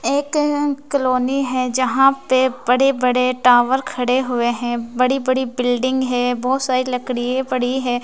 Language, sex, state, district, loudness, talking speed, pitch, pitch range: Hindi, female, Bihar, West Champaran, -18 LUFS, 155 wpm, 255 Hz, 250-265 Hz